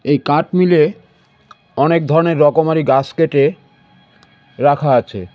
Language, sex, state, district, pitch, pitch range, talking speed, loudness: Bengali, male, West Bengal, Cooch Behar, 150 Hz, 135-165 Hz, 125 wpm, -14 LUFS